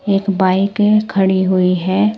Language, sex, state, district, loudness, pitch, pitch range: Hindi, male, Delhi, New Delhi, -14 LUFS, 195 Hz, 185-210 Hz